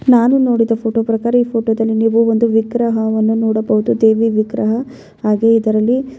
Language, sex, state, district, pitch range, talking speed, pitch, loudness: Kannada, female, Karnataka, Bellary, 220-235 Hz, 155 wpm, 225 Hz, -14 LUFS